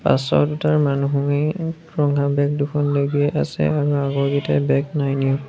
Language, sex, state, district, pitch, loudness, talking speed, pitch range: Assamese, male, Assam, Sonitpur, 140 Hz, -20 LUFS, 165 wpm, 135-145 Hz